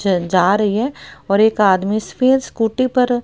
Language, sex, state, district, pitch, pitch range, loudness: Hindi, female, Haryana, Rohtak, 215 Hz, 195-250 Hz, -16 LUFS